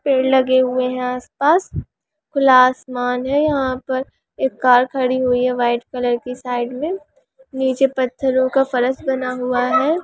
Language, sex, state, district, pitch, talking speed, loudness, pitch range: Hindi, female, Maharashtra, Solapur, 260 Hz, 160 wpm, -18 LUFS, 250-270 Hz